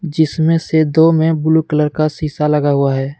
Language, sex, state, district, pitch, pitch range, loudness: Hindi, male, Jharkhand, Deoghar, 155 Hz, 150-160 Hz, -14 LUFS